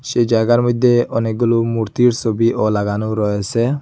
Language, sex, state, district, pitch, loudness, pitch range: Bengali, male, Assam, Hailakandi, 115 Hz, -16 LUFS, 110-120 Hz